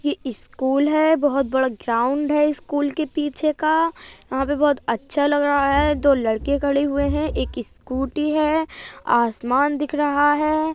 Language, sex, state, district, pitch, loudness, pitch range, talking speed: Hindi, female, Uttar Pradesh, Budaun, 290 Hz, -20 LUFS, 270-300 Hz, 165 wpm